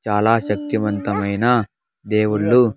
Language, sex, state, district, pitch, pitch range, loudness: Telugu, male, Andhra Pradesh, Sri Satya Sai, 105 Hz, 105-115 Hz, -19 LUFS